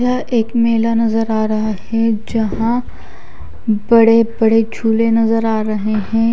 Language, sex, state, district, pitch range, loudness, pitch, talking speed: Hindi, female, Odisha, Khordha, 220-230 Hz, -15 LUFS, 225 Hz, 140 wpm